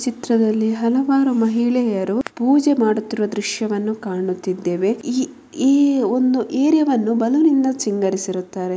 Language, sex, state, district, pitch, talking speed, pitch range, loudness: Kannada, female, Karnataka, Mysore, 230 Hz, 95 wpm, 205-265 Hz, -19 LUFS